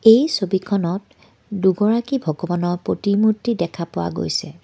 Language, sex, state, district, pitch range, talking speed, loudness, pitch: Assamese, female, Assam, Kamrup Metropolitan, 175-220 Hz, 105 wpm, -20 LUFS, 195 Hz